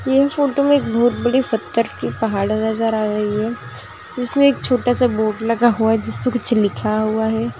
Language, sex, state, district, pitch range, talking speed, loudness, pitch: Hindi, female, Maharashtra, Nagpur, 220-250 Hz, 205 wpm, -18 LUFS, 230 Hz